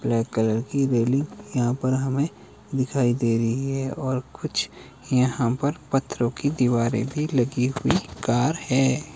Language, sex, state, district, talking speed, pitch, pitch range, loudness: Hindi, male, Himachal Pradesh, Shimla, 150 wpm, 130 Hz, 120-135 Hz, -24 LUFS